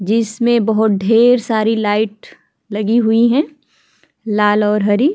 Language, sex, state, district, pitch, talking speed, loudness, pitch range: Hindi, female, Chhattisgarh, Kabirdham, 220 Hz, 130 wpm, -14 LUFS, 210-235 Hz